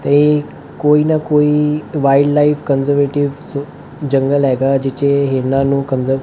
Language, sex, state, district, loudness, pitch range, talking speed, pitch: Punjabi, male, Punjab, Fazilka, -14 LUFS, 135-150 Hz, 125 wpm, 140 Hz